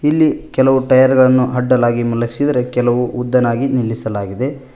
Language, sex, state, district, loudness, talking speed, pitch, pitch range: Kannada, male, Karnataka, Koppal, -15 LUFS, 115 wpm, 125 Hz, 120-130 Hz